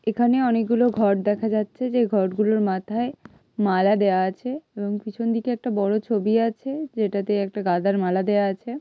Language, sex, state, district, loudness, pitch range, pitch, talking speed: Bengali, female, West Bengal, Malda, -23 LUFS, 200-235 Hz, 215 Hz, 165 wpm